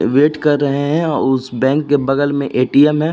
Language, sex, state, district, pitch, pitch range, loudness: Hindi, male, Uttar Pradesh, Jalaun, 145 Hz, 135-150 Hz, -15 LUFS